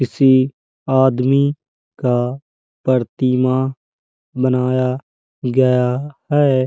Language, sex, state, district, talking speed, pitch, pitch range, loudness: Hindi, male, Uttar Pradesh, Jalaun, 65 wpm, 130 Hz, 125-135 Hz, -17 LUFS